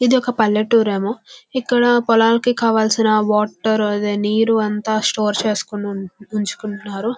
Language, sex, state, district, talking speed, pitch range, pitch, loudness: Telugu, female, Andhra Pradesh, Visakhapatnam, 115 wpm, 210-230 Hz, 215 Hz, -17 LUFS